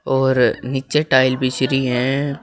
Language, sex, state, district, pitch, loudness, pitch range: Hindi, male, Uttar Pradesh, Shamli, 130 Hz, -18 LUFS, 130-135 Hz